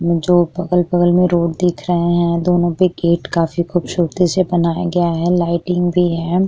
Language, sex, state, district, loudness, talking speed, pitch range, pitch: Hindi, female, Uttar Pradesh, Jyotiba Phule Nagar, -16 LUFS, 175 wpm, 170-180 Hz, 175 Hz